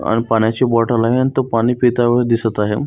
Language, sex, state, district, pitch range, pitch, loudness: Marathi, male, Maharashtra, Solapur, 115-125 Hz, 115 Hz, -16 LUFS